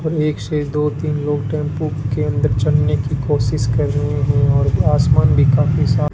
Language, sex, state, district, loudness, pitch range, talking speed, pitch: Hindi, male, Rajasthan, Bikaner, -17 LUFS, 130-150 Hz, 205 wpm, 140 Hz